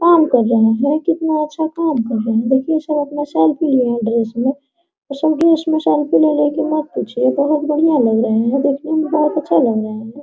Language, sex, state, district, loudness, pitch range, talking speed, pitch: Hindi, female, Bihar, Araria, -16 LUFS, 235-310 Hz, 235 wpm, 290 Hz